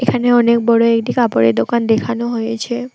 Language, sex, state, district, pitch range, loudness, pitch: Bengali, female, West Bengal, Alipurduar, 225-240 Hz, -15 LUFS, 235 Hz